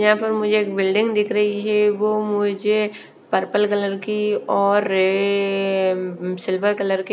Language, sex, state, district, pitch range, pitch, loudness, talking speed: Hindi, female, Bihar, West Champaran, 195-210 Hz, 205 Hz, -20 LUFS, 160 wpm